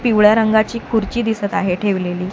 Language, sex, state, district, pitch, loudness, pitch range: Marathi, female, Maharashtra, Mumbai Suburban, 215 Hz, -17 LUFS, 200-225 Hz